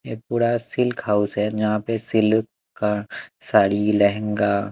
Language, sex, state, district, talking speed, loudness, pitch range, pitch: Hindi, male, Punjab, Kapurthala, 150 wpm, -21 LUFS, 105-115 Hz, 105 Hz